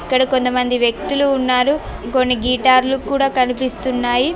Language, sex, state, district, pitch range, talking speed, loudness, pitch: Telugu, female, Telangana, Mahabubabad, 250-265 Hz, 125 wpm, -17 LUFS, 255 Hz